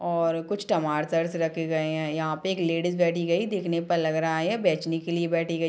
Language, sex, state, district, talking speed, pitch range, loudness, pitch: Hindi, female, Chhattisgarh, Bilaspur, 230 wpm, 160-170 Hz, -26 LUFS, 165 Hz